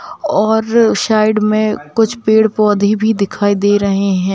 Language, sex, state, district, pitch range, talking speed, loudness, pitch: Hindi, female, Bihar, Darbhanga, 205-220 Hz, 165 wpm, -13 LUFS, 215 Hz